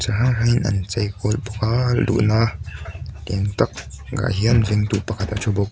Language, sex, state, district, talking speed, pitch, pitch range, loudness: Mizo, male, Mizoram, Aizawl, 145 wpm, 105 Hz, 100-115 Hz, -21 LUFS